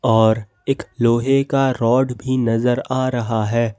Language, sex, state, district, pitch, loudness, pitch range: Hindi, male, Jharkhand, Ranchi, 120 Hz, -18 LUFS, 115-130 Hz